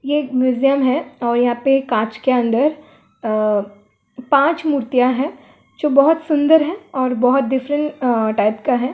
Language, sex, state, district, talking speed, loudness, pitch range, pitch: Hindi, female, Bihar, Gopalganj, 170 wpm, -17 LUFS, 245-290 Hz, 260 Hz